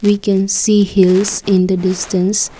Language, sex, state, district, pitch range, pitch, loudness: English, female, Assam, Kamrup Metropolitan, 185-205 Hz, 195 Hz, -14 LUFS